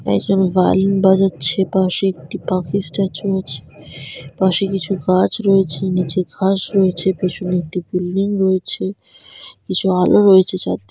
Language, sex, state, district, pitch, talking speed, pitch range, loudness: Bengali, female, West Bengal, Dakshin Dinajpur, 190 Hz, 125 wpm, 180-195 Hz, -17 LUFS